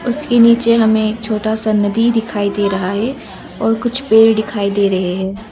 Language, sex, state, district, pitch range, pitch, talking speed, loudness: Hindi, female, Arunachal Pradesh, Lower Dibang Valley, 205-230 Hz, 220 Hz, 195 wpm, -14 LUFS